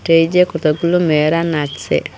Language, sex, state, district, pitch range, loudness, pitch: Bengali, female, Assam, Hailakandi, 155-170 Hz, -15 LUFS, 165 Hz